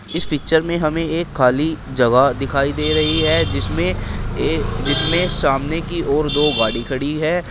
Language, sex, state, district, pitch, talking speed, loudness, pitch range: Hindi, male, Uttar Pradesh, Shamli, 150 Hz, 150 wpm, -18 LUFS, 135-160 Hz